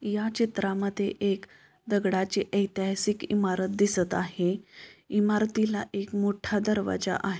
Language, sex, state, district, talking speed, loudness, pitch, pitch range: Marathi, female, Maharashtra, Pune, 115 wpm, -28 LUFS, 200 Hz, 195-210 Hz